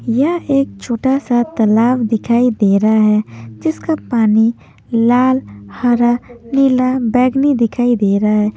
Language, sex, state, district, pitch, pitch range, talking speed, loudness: Hindi, female, Maharashtra, Mumbai Suburban, 240 Hz, 215-255 Hz, 135 wpm, -14 LUFS